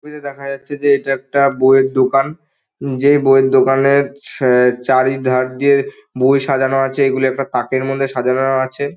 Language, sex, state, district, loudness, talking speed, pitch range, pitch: Bengali, male, West Bengal, Dakshin Dinajpur, -15 LUFS, 155 wpm, 130-140 Hz, 135 Hz